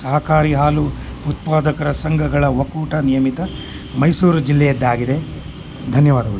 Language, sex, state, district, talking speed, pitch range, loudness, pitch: Kannada, male, Karnataka, Mysore, 180 wpm, 135-155 Hz, -17 LUFS, 145 Hz